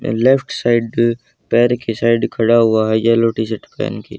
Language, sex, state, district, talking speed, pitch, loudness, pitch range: Hindi, male, Haryana, Charkhi Dadri, 215 wpm, 115 Hz, -16 LUFS, 110-120 Hz